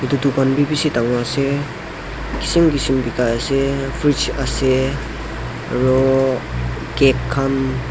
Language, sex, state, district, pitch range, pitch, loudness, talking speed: Nagamese, male, Nagaland, Dimapur, 130-140 Hz, 135 Hz, -18 LUFS, 115 wpm